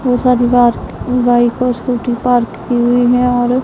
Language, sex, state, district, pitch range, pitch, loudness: Hindi, female, Punjab, Pathankot, 240-250 Hz, 245 Hz, -13 LUFS